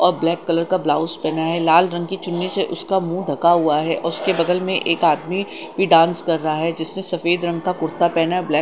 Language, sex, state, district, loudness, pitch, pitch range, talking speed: Hindi, female, Chandigarh, Chandigarh, -19 LUFS, 170 Hz, 165-180 Hz, 255 wpm